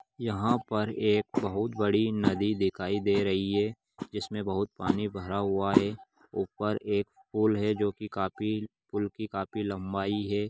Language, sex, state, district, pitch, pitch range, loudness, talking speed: Magahi, male, Bihar, Gaya, 105 Hz, 100-110 Hz, -30 LUFS, 160 wpm